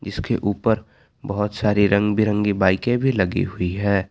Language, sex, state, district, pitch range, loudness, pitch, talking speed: Hindi, male, Jharkhand, Palamu, 100-110 Hz, -21 LUFS, 105 Hz, 160 wpm